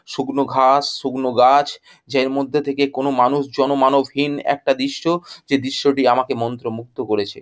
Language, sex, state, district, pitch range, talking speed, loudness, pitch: Bengali, female, West Bengal, Jhargram, 130-140 Hz, 135 wpm, -18 LUFS, 140 Hz